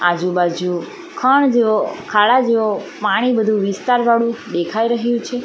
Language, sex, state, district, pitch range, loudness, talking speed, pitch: Gujarati, female, Gujarat, Valsad, 180-240 Hz, -17 LUFS, 145 wpm, 225 Hz